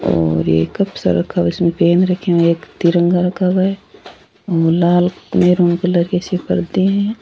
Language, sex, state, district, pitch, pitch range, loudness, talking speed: Rajasthani, female, Rajasthan, Churu, 175 Hz, 170-185 Hz, -15 LUFS, 200 wpm